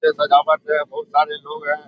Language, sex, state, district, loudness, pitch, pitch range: Hindi, male, Bihar, Saharsa, -19 LUFS, 155 Hz, 150-180 Hz